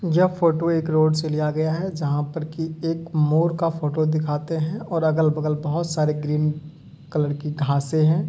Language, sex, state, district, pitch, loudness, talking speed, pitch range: Hindi, male, Uttar Pradesh, Etah, 155 Hz, -22 LUFS, 190 wpm, 150-165 Hz